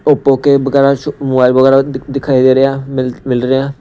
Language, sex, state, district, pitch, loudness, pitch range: Hindi, male, Punjab, Pathankot, 135 Hz, -12 LUFS, 130-140 Hz